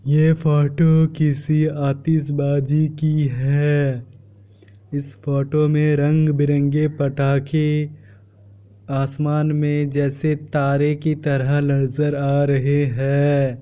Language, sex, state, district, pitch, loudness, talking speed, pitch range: Hindi, male, Bihar, Kishanganj, 145 Hz, -19 LUFS, 90 wpm, 140-150 Hz